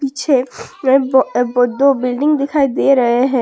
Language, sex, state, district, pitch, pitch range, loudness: Hindi, female, Assam, Sonitpur, 265 Hz, 250-280 Hz, -14 LUFS